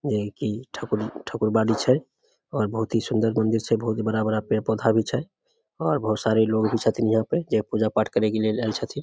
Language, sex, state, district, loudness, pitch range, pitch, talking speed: Maithili, male, Bihar, Samastipur, -24 LUFS, 110-115 Hz, 110 Hz, 205 wpm